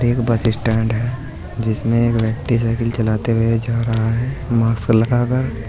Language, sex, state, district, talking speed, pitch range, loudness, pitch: Hindi, male, Uttar Pradesh, Saharanpur, 170 wpm, 115-120 Hz, -18 LUFS, 115 Hz